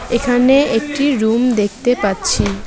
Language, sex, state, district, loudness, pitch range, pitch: Bengali, female, West Bengal, Cooch Behar, -15 LUFS, 205-255 Hz, 240 Hz